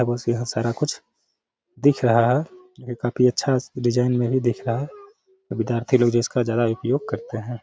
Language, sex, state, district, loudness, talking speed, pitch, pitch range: Hindi, male, Bihar, Gaya, -22 LUFS, 180 wpm, 120 Hz, 120-135 Hz